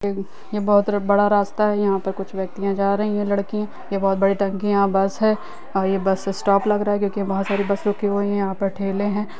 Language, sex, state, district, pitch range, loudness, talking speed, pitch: Hindi, female, Bihar, Lakhisarai, 195-205 Hz, -21 LUFS, 260 wpm, 200 Hz